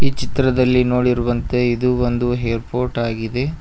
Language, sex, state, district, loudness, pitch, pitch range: Kannada, male, Karnataka, Koppal, -19 LUFS, 125 Hz, 120-125 Hz